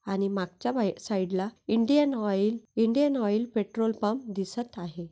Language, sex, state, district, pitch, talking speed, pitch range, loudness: Marathi, female, Maharashtra, Nagpur, 210 Hz, 140 wpm, 195-230 Hz, -28 LUFS